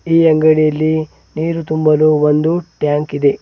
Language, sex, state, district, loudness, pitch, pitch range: Kannada, male, Karnataka, Bidar, -14 LUFS, 155 Hz, 150-165 Hz